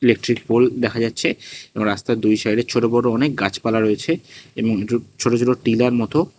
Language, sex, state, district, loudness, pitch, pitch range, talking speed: Bengali, male, Tripura, West Tripura, -19 LUFS, 120 Hz, 110-125 Hz, 180 wpm